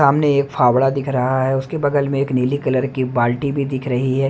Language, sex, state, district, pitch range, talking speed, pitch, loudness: Hindi, male, Haryana, Rohtak, 130-140 Hz, 250 wpm, 135 Hz, -18 LUFS